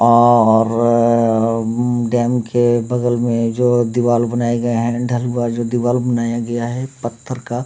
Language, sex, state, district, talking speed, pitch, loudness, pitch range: Hindi, male, Jharkhand, Sahebganj, 150 wpm, 120 Hz, -16 LUFS, 115-120 Hz